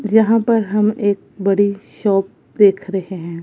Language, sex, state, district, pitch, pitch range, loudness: Hindi, female, Punjab, Kapurthala, 200 Hz, 195-210 Hz, -17 LUFS